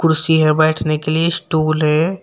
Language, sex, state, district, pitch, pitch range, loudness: Hindi, male, Uttar Pradesh, Shamli, 155 Hz, 155-160 Hz, -15 LUFS